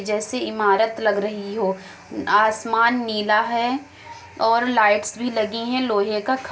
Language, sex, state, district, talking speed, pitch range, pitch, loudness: Hindi, female, Uttar Pradesh, Muzaffarnagar, 155 wpm, 210-235 Hz, 220 Hz, -21 LUFS